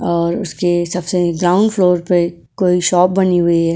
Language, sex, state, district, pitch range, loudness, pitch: Hindi, female, Goa, North and South Goa, 170-180 Hz, -15 LUFS, 180 Hz